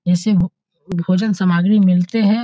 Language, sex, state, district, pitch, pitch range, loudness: Hindi, male, Bihar, Muzaffarpur, 185 Hz, 180-205 Hz, -16 LUFS